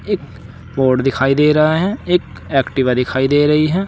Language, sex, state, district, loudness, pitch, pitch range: Hindi, male, Uttar Pradesh, Saharanpur, -15 LUFS, 135 Hz, 130-155 Hz